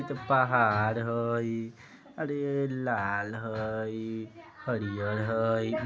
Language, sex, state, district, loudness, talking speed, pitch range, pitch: Bajjika, male, Bihar, Vaishali, -30 LUFS, 110 wpm, 110-125 Hz, 115 Hz